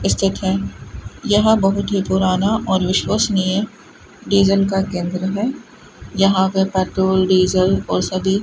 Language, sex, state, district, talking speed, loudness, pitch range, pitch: Hindi, female, Rajasthan, Bikaner, 135 wpm, -17 LUFS, 185-195 Hz, 190 Hz